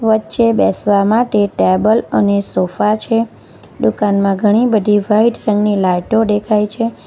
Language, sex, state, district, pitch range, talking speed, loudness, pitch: Gujarati, female, Gujarat, Valsad, 205-225 Hz, 125 wpm, -14 LUFS, 210 Hz